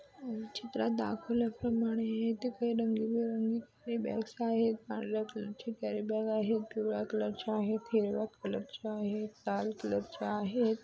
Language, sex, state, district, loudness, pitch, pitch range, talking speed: Marathi, female, Maharashtra, Solapur, -35 LUFS, 220 Hz, 215-230 Hz, 110 wpm